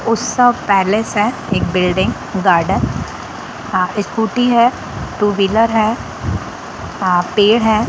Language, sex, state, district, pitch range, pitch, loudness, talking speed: Hindi, female, Bihar, Sitamarhi, 195-230 Hz, 215 Hz, -15 LUFS, 115 wpm